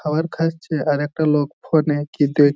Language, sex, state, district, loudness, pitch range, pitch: Bengali, male, West Bengal, Jhargram, -20 LUFS, 145-160 Hz, 150 Hz